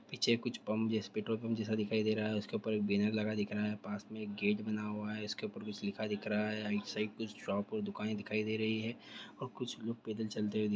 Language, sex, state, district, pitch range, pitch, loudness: Hindi, male, Bihar, Darbhanga, 105-110 Hz, 110 Hz, -37 LUFS